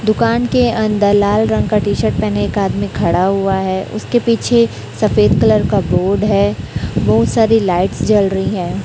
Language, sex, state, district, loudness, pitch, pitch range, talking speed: Hindi, female, Chhattisgarh, Raipur, -14 LUFS, 205 Hz, 190-225 Hz, 185 wpm